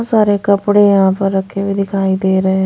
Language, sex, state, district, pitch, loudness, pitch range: Hindi, female, Punjab, Pathankot, 195 Hz, -13 LUFS, 190-205 Hz